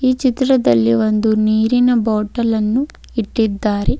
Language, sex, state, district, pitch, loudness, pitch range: Kannada, female, Karnataka, Bidar, 220 Hz, -16 LUFS, 215-250 Hz